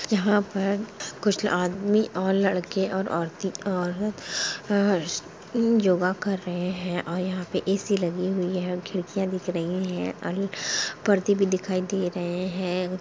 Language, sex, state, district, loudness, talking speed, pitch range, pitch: Hindi, female, Chhattisgarh, Rajnandgaon, -26 LUFS, 140 wpm, 180-200 Hz, 185 Hz